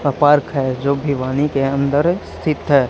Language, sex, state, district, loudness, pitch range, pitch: Hindi, male, Haryana, Charkhi Dadri, -17 LUFS, 135-145 Hz, 140 Hz